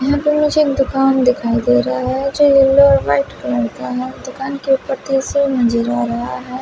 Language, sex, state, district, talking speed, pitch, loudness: Hindi, female, Bihar, West Champaran, 210 wpm, 260 Hz, -15 LUFS